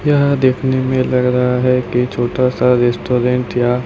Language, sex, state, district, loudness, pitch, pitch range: Hindi, male, Chhattisgarh, Raipur, -15 LUFS, 125 Hz, 125-130 Hz